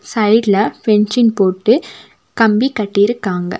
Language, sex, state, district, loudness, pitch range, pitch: Tamil, female, Tamil Nadu, Nilgiris, -14 LUFS, 200-230 Hz, 215 Hz